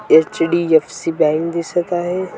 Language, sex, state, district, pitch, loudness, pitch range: Marathi, female, Maharashtra, Washim, 165 Hz, -17 LUFS, 160-175 Hz